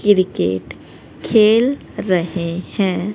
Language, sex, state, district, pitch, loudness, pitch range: Hindi, female, Haryana, Rohtak, 185 Hz, -17 LUFS, 170-210 Hz